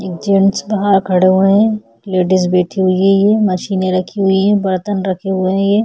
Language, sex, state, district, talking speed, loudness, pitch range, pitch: Hindi, female, Chhattisgarh, Kabirdham, 205 wpm, -14 LUFS, 185-200 Hz, 195 Hz